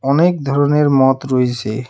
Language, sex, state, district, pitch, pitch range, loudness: Bengali, male, West Bengal, Alipurduar, 135 Hz, 125-145 Hz, -15 LUFS